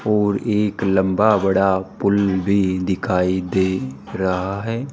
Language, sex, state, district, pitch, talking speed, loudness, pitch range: Hindi, male, Rajasthan, Jaipur, 95 Hz, 120 wpm, -19 LUFS, 95-105 Hz